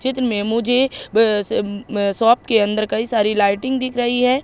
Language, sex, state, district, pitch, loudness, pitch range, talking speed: Hindi, male, Madhya Pradesh, Katni, 225 Hz, -18 LUFS, 210-250 Hz, 190 wpm